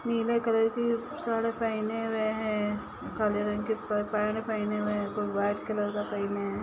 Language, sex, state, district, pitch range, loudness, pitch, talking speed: Magahi, female, Bihar, Lakhisarai, 210-225 Hz, -30 LUFS, 215 Hz, 180 wpm